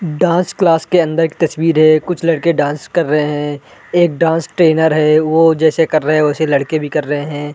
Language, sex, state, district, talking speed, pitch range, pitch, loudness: Hindi, male, Chhattisgarh, Raigarh, 225 wpm, 150-165 Hz, 160 Hz, -14 LUFS